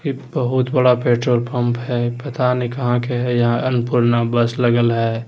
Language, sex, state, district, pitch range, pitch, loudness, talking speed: Hindi, male, Bihar, Jamui, 120-125 Hz, 120 Hz, -18 LUFS, 180 wpm